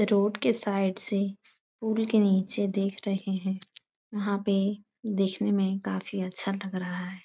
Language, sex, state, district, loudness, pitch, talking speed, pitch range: Hindi, female, Bihar, Supaul, -28 LUFS, 200 Hz, 155 wpm, 190-205 Hz